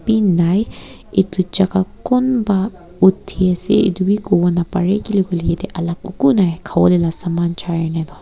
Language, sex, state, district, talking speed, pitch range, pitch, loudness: Nagamese, female, Nagaland, Kohima, 145 wpm, 175-200 Hz, 185 Hz, -17 LUFS